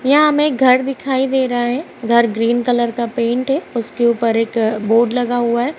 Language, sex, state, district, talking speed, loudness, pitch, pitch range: Hindi, female, Uttar Pradesh, Ghazipur, 195 wpm, -16 LUFS, 240 Hz, 235-265 Hz